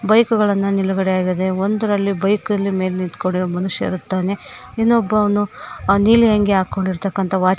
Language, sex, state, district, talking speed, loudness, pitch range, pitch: Kannada, female, Karnataka, Koppal, 135 wpm, -18 LUFS, 185-205 Hz, 195 Hz